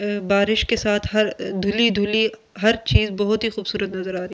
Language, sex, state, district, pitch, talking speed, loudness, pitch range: Hindi, female, Delhi, New Delhi, 205 Hz, 220 wpm, -21 LUFS, 200-220 Hz